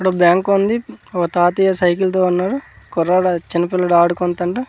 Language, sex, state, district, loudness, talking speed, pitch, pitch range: Telugu, male, Andhra Pradesh, Manyam, -17 LUFS, 165 wpm, 180 Hz, 175-190 Hz